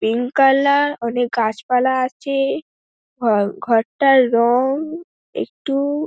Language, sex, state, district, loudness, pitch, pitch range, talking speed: Bengali, female, West Bengal, Dakshin Dinajpur, -18 LUFS, 260 Hz, 235-280 Hz, 70 wpm